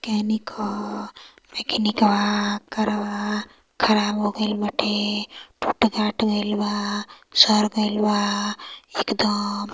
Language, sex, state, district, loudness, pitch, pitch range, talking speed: Hindi, male, Uttar Pradesh, Varanasi, -22 LUFS, 210 Hz, 205-215 Hz, 100 wpm